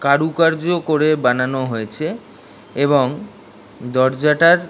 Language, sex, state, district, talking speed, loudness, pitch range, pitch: Bengali, male, West Bengal, Dakshin Dinajpur, 90 wpm, -17 LUFS, 130-160 Hz, 145 Hz